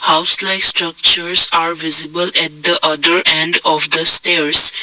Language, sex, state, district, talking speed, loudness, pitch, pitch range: English, male, Assam, Kamrup Metropolitan, 150 wpm, -12 LUFS, 170 Hz, 160-175 Hz